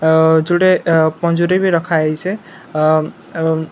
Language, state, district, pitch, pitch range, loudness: Sambalpuri, Odisha, Sambalpur, 165 Hz, 160-180 Hz, -15 LUFS